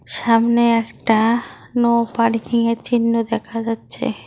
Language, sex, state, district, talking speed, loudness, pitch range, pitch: Bengali, female, West Bengal, Cooch Behar, 100 wpm, -18 LUFS, 230-235 Hz, 230 Hz